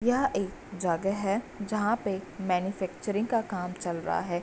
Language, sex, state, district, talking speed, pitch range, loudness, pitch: Hindi, female, Bihar, Bhagalpur, 165 wpm, 180-210 Hz, -30 LUFS, 195 Hz